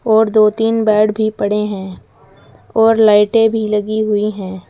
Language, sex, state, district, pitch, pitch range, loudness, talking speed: Hindi, female, Uttar Pradesh, Saharanpur, 215 Hz, 210-220 Hz, -14 LUFS, 165 wpm